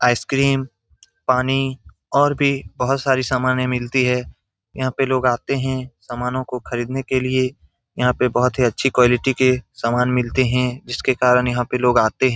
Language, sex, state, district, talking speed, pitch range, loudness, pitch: Hindi, male, Bihar, Saran, 180 wpm, 125-130 Hz, -19 LUFS, 125 Hz